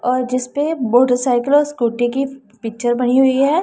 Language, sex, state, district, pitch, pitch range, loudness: Hindi, female, Punjab, Pathankot, 255 Hz, 240-275 Hz, -17 LUFS